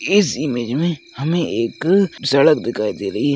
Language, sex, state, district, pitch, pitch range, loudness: Hindi, female, Rajasthan, Nagaur, 155 Hz, 140-170 Hz, -18 LUFS